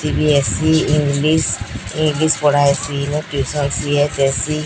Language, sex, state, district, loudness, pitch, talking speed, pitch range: Odia, female, Odisha, Sambalpur, -16 LUFS, 145 Hz, 115 wpm, 140-150 Hz